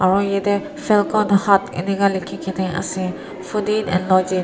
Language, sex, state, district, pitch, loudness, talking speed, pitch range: Nagamese, female, Nagaland, Kohima, 195 Hz, -19 LUFS, 160 wpm, 185-205 Hz